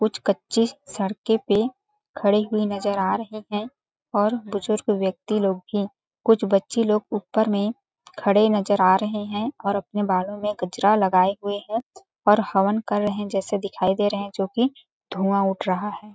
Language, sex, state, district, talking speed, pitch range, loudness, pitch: Hindi, female, Chhattisgarh, Balrampur, 180 wpm, 200-220 Hz, -23 LUFS, 205 Hz